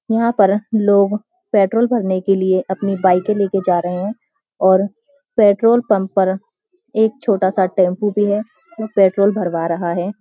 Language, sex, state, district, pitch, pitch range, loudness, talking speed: Hindi, female, Uttarakhand, Uttarkashi, 200 Hz, 190-225 Hz, -16 LUFS, 160 wpm